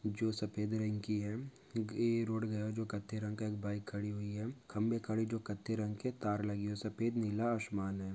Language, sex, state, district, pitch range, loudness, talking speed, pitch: Hindi, male, Maharashtra, Nagpur, 105-110 Hz, -39 LUFS, 220 wpm, 110 Hz